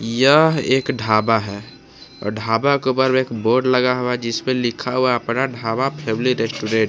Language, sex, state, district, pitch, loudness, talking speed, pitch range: Hindi, male, Jharkhand, Palamu, 125 Hz, -18 LUFS, 185 wpm, 115-130 Hz